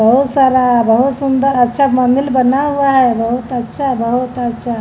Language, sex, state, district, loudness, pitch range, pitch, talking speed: Hindi, female, Bihar, Patna, -13 LUFS, 240-270 Hz, 255 Hz, 160 wpm